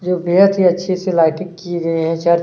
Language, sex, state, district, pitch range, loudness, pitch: Hindi, male, Chhattisgarh, Kabirdham, 170-185 Hz, -15 LUFS, 175 Hz